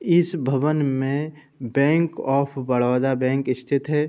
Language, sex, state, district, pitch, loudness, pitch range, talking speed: Hindi, male, Uttar Pradesh, Budaun, 140 Hz, -22 LUFS, 130-150 Hz, 130 wpm